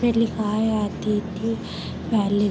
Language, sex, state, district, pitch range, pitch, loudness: Hindi, female, Jharkhand, Sahebganj, 205-225 Hz, 215 Hz, -24 LUFS